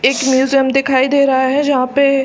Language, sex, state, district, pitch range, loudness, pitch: Hindi, female, Chhattisgarh, Balrampur, 260-275 Hz, -13 LUFS, 270 Hz